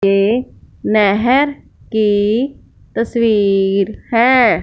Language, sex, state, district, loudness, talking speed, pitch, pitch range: Hindi, female, Punjab, Fazilka, -15 LUFS, 65 wpm, 220 Hz, 205-245 Hz